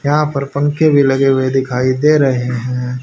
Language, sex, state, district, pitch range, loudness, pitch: Hindi, male, Haryana, Rohtak, 125-145 Hz, -14 LUFS, 135 Hz